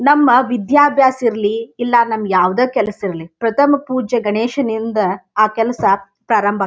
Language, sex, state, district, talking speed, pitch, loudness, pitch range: Kannada, female, Karnataka, Dharwad, 135 wpm, 225 Hz, -15 LUFS, 205-255 Hz